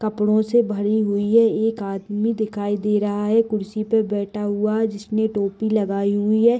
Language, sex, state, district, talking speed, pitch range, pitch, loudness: Hindi, female, Bihar, Darbhanga, 190 wpm, 205-220 Hz, 215 Hz, -21 LUFS